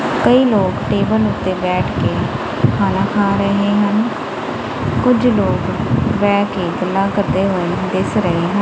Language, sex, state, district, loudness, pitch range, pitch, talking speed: Punjabi, female, Punjab, Kapurthala, -16 LUFS, 185-205 Hz, 200 Hz, 130 wpm